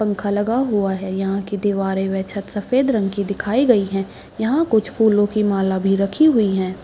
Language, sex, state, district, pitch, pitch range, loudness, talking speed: Hindi, female, Bihar, Madhepura, 200 Hz, 195-220 Hz, -19 LUFS, 210 wpm